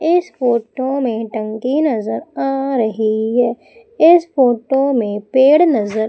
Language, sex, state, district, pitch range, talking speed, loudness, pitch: Hindi, female, Madhya Pradesh, Umaria, 220-275 Hz, 130 wpm, -16 LUFS, 250 Hz